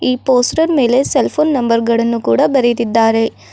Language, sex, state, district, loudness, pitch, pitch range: Kannada, female, Karnataka, Bidar, -13 LUFS, 245 Hz, 230-270 Hz